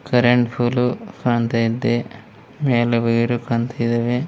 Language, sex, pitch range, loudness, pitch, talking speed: Kannada, male, 115-125 Hz, -19 LUFS, 120 Hz, 110 wpm